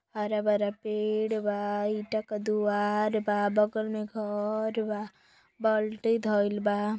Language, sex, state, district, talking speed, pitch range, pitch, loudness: Hindi, female, Uttar Pradesh, Deoria, 130 wpm, 210-215 Hz, 210 Hz, -29 LUFS